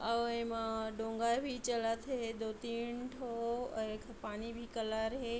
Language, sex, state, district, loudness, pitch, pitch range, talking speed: Chhattisgarhi, female, Chhattisgarh, Bilaspur, -39 LUFS, 230 Hz, 225-240 Hz, 165 wpm